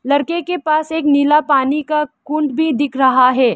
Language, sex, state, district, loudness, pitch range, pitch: Hindi, female, Arunachal Pradesh, Lower Dibang Valley, -15 LUFS, 275-310 Hz, 295 Hz